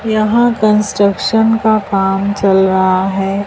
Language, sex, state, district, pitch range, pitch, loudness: Hindi, male, Madhya Pradesh, Dhar, 195-220 Hz, 200 Hz, -12 LUFS